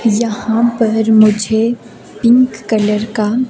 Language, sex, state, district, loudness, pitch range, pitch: Hindi, female, Himachal Pradesh, Shimla, -13 LUFS, 215-235 Hz, 225 Hz